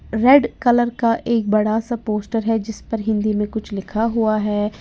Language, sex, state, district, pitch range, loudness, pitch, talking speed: Hindi, female, Uttar Pradesh, Lalitpur, 215-230 Hz, -19 LUFS, 220 Hz, 200 wpm